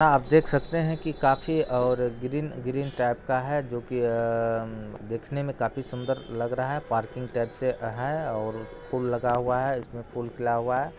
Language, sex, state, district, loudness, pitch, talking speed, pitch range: Bhojpuri, male, Bihar, Saran, -28 LUFS, 125 Hz, 195 wpm, 120-140 Hz